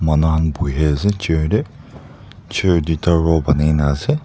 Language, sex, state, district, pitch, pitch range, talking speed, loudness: Nagamese, male, Nagaland, Dimapur, 80 Hz, 75-85 Hz, 140 wpm, -17 LUFS